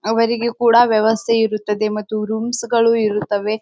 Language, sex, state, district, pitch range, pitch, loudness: Kannada, female, Karnataka, Bijapur, 215-230 Hz, 220 Hz, -17 LUFS